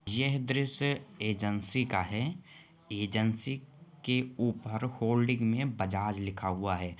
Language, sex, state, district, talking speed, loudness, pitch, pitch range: Hindi, male, Jharkhand, Sahebganj, 120 wpm, -32 LUFS, 120 Hz, 105-135 Hz